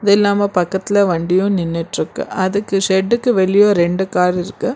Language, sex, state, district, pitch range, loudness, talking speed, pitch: Tamil, female, Karnataka, Bangalore, 180-205 Hz, -16 LUFS, 125 wpm, 190 Hz